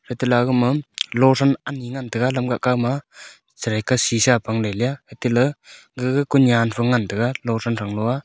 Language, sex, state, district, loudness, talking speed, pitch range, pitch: Wancho, male, Arunachal Pradesh, Longding, -20 LUFS, 195 wpm, 115-130 Hz, 125 Hz